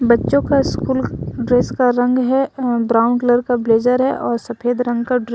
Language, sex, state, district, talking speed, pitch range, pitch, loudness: Hindi, female, Jharkhand, Ranchi, 200 wpm, 235-255 Hz, 245 Hz, -17 LUFS